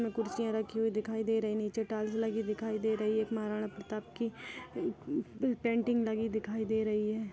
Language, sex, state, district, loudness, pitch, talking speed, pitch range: Hindi, female, Chhattisgarh, Bastar, -34 LUFS, 220 Hz, 205 wpm, 215-225 Hz